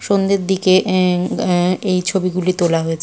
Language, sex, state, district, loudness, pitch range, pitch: Bengali, female, West Bengal, Malda, -16 LUFS, 180-190 Hz, 185 Hz